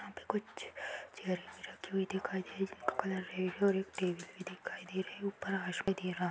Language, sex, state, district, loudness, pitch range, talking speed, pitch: Hindi, female, Bihar, Jamui, -38 LUFS, 185-195 Hz, 220 wpm, 190 Hz